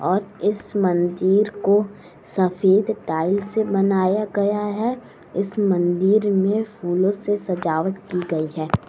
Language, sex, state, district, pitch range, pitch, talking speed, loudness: Hindi, female, Bihar, West Champaran, 180-205 Hz, 195 Hz, 130 wpm, -21 LUFS